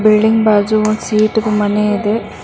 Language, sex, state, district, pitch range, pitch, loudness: Kannada, female, Karnataka, Bangalore, 210-215 Hz, 215 Hz, -14 LUFS